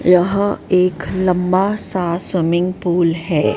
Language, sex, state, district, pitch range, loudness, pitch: Hindi, female, Maharashtra, Mumbai Suburban, 170-185 Hz, -17 LUFS, 180 Hz